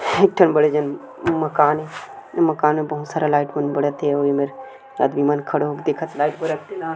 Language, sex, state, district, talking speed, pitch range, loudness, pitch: Chhattisgarhi, male, Chhattisgarh, Sukma, 205 wpm, 145-160 Hz, -20 LUFS, 150 Hz